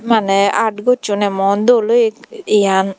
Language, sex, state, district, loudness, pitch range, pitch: Chakma, female, Tripura, Dhalai, -14 LUFS, 200-230 Hz, 210 Hz